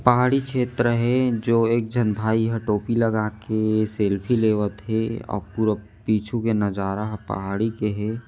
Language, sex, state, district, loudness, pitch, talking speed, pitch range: Chhattisgarhi, male, Chhattisgarh, Rajnandgaon, -23 LUFS, 110 Hz, 160 wpm, 105-115 Hz